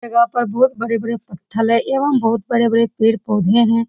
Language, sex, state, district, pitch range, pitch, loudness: Hindi, female, Bihar, Saran, 225-235 Hz, 230 Hz, -17 LUFS